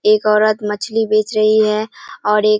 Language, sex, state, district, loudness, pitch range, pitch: Hindi, female, Bihar, Kishanganj, -15 LUFS, 210-215 Hz, 215 Hz